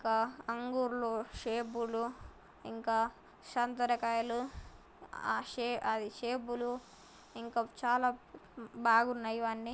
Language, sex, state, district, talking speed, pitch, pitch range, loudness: Telugu, female, Telangana, Karimnagar, 110 wpm, 235 Hz, 230-245 Hz, -35 LUFS